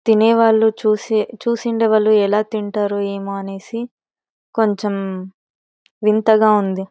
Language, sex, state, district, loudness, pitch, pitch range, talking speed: Telugu, female, Karnataka, Bellary, -17 LUFS, 215 Hz, 200-220 Hz, 105 wpm